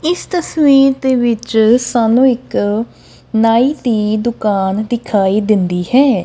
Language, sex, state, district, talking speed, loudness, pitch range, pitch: Punjabi, female, Punjab, Kapurthala, 115 wpm, -13 LUFS, 215-265 Hz, 235 Hz